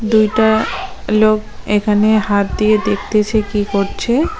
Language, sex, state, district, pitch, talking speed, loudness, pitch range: Bengali, female, West Bengal, Cooch Behar, 215 Hz, 110 wpm, -15 LUFS, 210-220 Hz